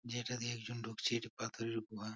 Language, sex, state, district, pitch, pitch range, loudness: Bengali, male, West Bengal, Purulia, 115 Hz, 115-120 Hz, -41 LUFS